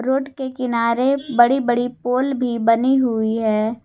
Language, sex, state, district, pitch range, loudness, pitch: Hindi, female, Jharkhand, Garhwa, 230-265 Hz, -19 LUFS, 245 Hz